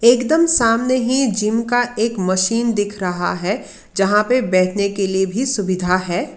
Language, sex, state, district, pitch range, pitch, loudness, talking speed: Hindi, female, Karnataka, Bangalore, 190-245 Hz, 210 Hz, -17 LUFS, 170 wpm